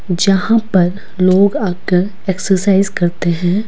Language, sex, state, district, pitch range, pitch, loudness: Hindi, female, Himachal Pradesh, Shimla, 180-200 Hz, 190 Hz, -14 LUFS